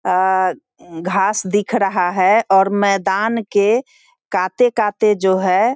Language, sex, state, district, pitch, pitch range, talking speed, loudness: Hindi, female, Bihar, Sitamarhi, 195 Hz, 185-220 Hz, 135 wpm, -16 LUFS